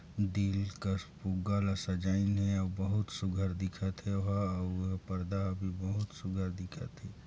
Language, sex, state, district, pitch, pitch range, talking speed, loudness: Chhattisgarhi, male, Chhattisgarh, Sarguja, 95 Hz, 95-100 Hz, 155 wpm, -35 LUFS